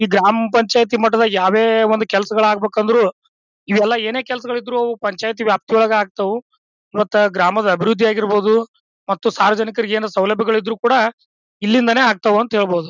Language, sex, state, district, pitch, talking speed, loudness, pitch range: Kannada, male, Karnataka, Bijapur, 220 Hz, 135 wpm, -16 LUFS, 210-230 Hz